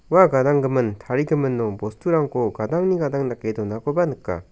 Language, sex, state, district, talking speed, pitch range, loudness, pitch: Garo, male, Meghalaya, South Garo Hills, 120 wpm, 110-150 Hz, -21 LUFS, 130 Hz